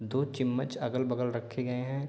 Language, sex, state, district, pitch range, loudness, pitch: Hindi, male, Jharkhand, Sahebganj, 125-130 Hz, -32 LUFS, 125 Hz